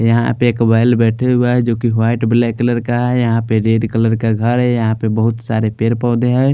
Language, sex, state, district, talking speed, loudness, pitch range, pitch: Hindi, male, Haryana, Charkhi Dadri, 245 wpm, -15 LUFS, 115-120 Hz, 115 Hz